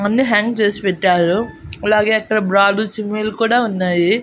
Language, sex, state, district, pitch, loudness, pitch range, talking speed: Telugu, female, Andhra Pradesh, Annamaya, 210 Hz, -16 LUFS, 200-220 Hz, 140 wpm